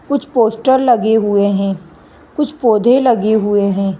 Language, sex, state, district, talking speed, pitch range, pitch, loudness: Hindi, female, Madhya Pradesh, Bhopal, 150 wpm, 200-250 Hz, 220 Hz, -14 LUFS